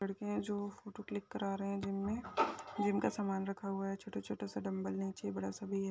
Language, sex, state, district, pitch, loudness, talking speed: Hindi, female, Chhattisgarh, Sukma, 195 Hz, -39 LUFS, 235 wpm